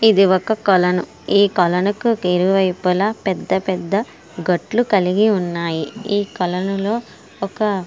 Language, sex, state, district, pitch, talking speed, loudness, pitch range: Telugu, female, Andhra Pradesh, Srikakulam, 195 Hz, 115 wpm, -18 LUFS, 180-210 Hz